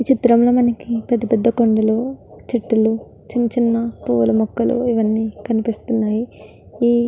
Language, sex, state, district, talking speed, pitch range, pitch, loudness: Telugu, female, Andhra Pradesh, Guntur, 135 wpm, 220-240 Hz, 230 Hz, -18 LUFS